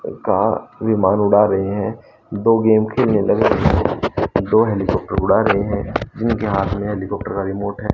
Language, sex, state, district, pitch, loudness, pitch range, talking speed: Hindi, male, Haryana, Rohtak, 105 Hz, -18 LUFS, 100-110 Hz, 175 wpm